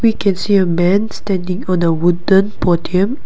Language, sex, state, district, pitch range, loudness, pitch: English, female, Nagaland, Kohima, 175-200 Hz, -15 LUFS, 190 Hz